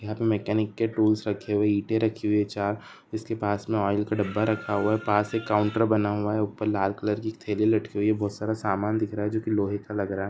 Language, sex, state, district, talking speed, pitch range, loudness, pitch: Hindi, male, Uttar Pradesh, Deoria, 270 wpm, 105-110 Hz, -26 LUFS, 105 Hz